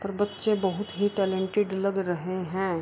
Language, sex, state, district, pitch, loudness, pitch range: Hindi, female, Bihar, Kishanganj, 195 Hz, -28 LUFS, 185-205 Hz